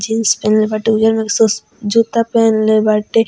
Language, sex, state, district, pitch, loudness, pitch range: Bhojpuri, female, Bihar, Muzaffarpur, 220 Hz, -14 LUFS, 215-225 Hz